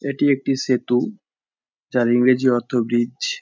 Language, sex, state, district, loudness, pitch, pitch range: Bengali, male, West Bengal, Jhargram, -20 LUFS, 125 Hz, 120-135 Hz